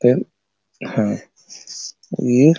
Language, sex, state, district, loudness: Hindi, male, Uttar Pradesh, Ghazipur, -21 LUFS